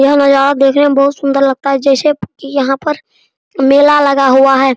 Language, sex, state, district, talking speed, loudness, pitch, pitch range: Hindi, male, Bihar, Araria, 190 wpm, -11 LUFS, 275 Hz, 270-285 Hz